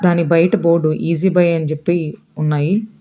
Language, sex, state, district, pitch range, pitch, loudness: Telugu, female, Telangana, Hyderabad, 155-175 Hz, 170 Hz, -16 LUFS